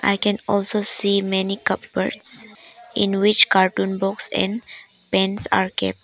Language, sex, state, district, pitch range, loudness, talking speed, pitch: English, female, Arunachal Pradesh, Papum Pare, 195-210 Hz, -20 LUFS, 140 wpm, 200 Hz